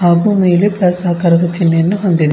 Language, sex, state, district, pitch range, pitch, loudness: Kannada, female, Karnataka, Bidar, 170-185 Hz, 175 Hz, -12 LUFS